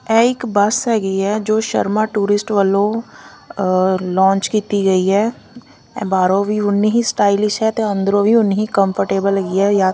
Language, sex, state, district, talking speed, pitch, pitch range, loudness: Punjabi, female, Punjab, Fazilka, 180 wpm, 205 Hz, 195-220 Hz, -16 LUFS